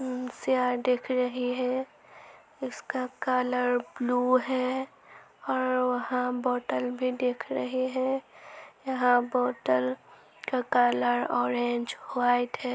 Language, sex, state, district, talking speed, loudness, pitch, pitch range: Hindi, female, Uttar Pradesh, Muzaffarnagar, 100 wpm, -28 LUFS, 250 Hz, 245-255 Hz